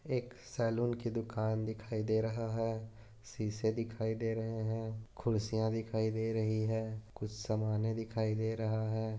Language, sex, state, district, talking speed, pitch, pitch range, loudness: Hindi, male, Maharashtra, Aurangabad, 155 wpm, 110 Hz, 110-115 Hz, -36 LUFS